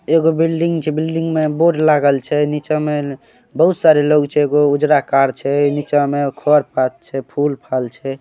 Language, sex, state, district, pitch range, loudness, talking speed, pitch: Maithili, male, Bihar, Saharsa, 140-155 Hz, -16 LUFS, 190 wpm, 150 Hz